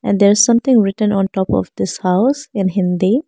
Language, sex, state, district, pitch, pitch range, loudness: English, female, Arunachal Pradesh, Lower Dibang Valley, 200 Hz, 185-230 Hz, -15 LUFS